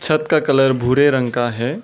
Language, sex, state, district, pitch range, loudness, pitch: Hindi, male, Arunachal Pradesh, Lower Dibang Valley, 120-150 Hz, -16 LUFS, 135 Hz